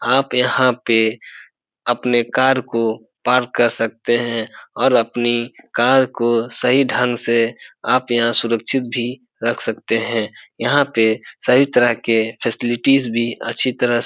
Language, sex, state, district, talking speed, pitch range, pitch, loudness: Hindi, male, Bihar, Supaul, 155 wpm, 115-125 Hz, 120 Hz, -18 LUFS